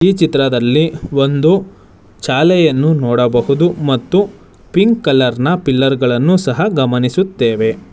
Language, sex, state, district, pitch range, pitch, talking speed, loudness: Kannada, male, Karnataka, Bangalore, 125-175 Hz, 140 Hz, 100 wpm, -13 LUFS